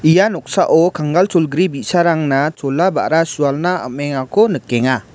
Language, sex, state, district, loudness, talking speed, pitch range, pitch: Garo, male, Meghalaya, West Garo Hills, -15 LUFS, 115 wpm, 140-180 Hz, 160 Hz